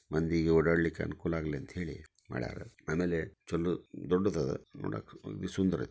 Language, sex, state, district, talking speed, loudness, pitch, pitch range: Kannada, male, Karnataka, Dharwad, 130 wpm, -33 LUFS, 85 Hz, 80-95 Hz